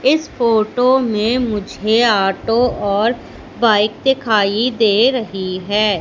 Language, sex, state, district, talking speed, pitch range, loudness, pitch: Hindi, female, Madhya Pradesh, Katni, 110 wpm, 210-245 Hz, -16 LUFS, 220 Hz